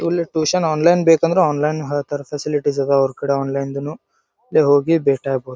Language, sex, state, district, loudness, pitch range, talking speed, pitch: Kannada, male, Karnataka, Dharwad, -18 LUFS, 140-165 Hz, 175 wpm, 145 Hz